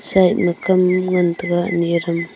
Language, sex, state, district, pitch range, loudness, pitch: Wancho, female, Arunachal Pradesh, Longding, 170-185 Hz, -17 LUFS, 175 Hz